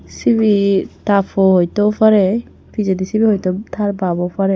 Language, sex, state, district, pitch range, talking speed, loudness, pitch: Chakma, female, Tripura, Unakoti, 185-210 Hz, 160 wpm, -15 LUFS, 195 Hz